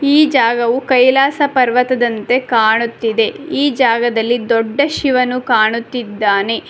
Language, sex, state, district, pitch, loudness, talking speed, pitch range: Kannada, female, Karnataka, Bangalore, 240 Hz, -14 LUFS, 90 wpm, 225-265 Hz